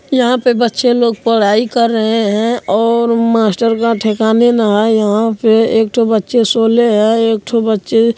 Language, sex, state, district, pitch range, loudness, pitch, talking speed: Hindi, male, Bihar, Araria, 220-235 Hz, -12 LUFS, 225 Hz, 190 wpm